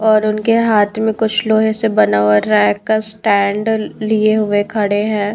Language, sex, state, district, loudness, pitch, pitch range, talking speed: Hindi, female, Bihar, Patna, -14 LUFS, 215 Hz, 205-220 Hz, 180 wpm